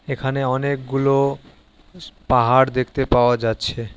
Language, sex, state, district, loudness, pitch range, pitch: Bengali, male, West Bengal, Alipurduar, -19 LUFS, 120-135 Hz, 130 Hz